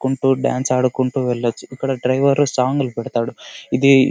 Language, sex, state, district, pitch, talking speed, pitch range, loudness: Telugu, male, Karnataka, Bellary, 130 Hz, 160 wpm, 125-135 Hz, -18 LUFS